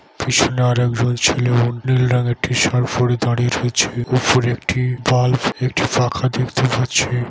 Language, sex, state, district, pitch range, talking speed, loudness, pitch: Bengali, male, West Bengal, Malda, 120-125 Hz, 150 wpm, -17 LUFS, 125 Hz